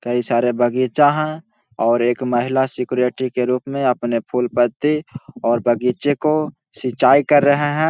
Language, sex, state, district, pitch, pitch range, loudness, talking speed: Hindi, male, Bihar, Jahanabad, 125 Hz, 120-145 Hz, -18 LUFS, 150 wpm